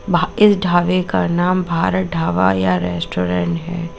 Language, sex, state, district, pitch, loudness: Hindi, female, Uttar Pradesh, Lalitpur, 165 Hz, -17 LUFS